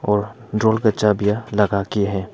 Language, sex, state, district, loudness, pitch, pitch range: Hindi, male, Arunachal Pradesh, Papum Pare, -19 LUFS, 105 Hz, 100-110 Hz